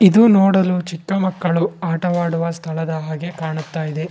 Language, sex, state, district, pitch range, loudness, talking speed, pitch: Kannada, male, Karnataka, Bangalore, 160-185 Hz, -18 LUFS, 130 wpm, 170 Hz